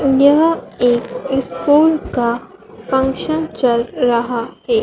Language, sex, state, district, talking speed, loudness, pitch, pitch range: Hindi, female, Madhya Pradesh, Dhar, 100 wpm, -16 LUFS, 260 Hz, 235-285 Hz